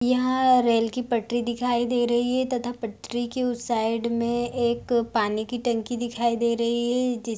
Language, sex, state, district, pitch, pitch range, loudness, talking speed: Hindi, female, Bihar, Sitamarhi, 240 Hz, 235-245 Hz, -25 LUFS, 195 wpm